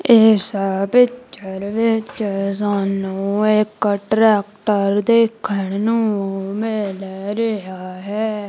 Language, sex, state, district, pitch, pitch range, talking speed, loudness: Punjabi, female, Punjab, Kapurthala, 205 Hz, 195-220 Hz, 80 wpm, -18 LUFS